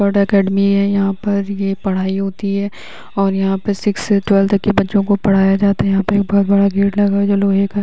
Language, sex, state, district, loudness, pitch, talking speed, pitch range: Hindi, female, Bihar, Saran, -15 LUFS, 200 Hz, 245 wpm, 195-200 Hz